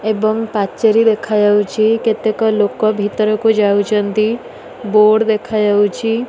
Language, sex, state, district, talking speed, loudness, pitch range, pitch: Odia, female, Odisha, Nuapada, 85 wpm, -14 LUFS, 210-220 Hz, 215 Hz